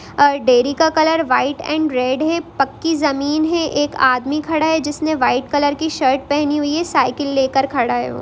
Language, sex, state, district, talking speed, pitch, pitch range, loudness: Hindi, female, Bihar, Sitamarhi, 195 wpm, 290 Hz, 270-315 Hz, -17 LUFS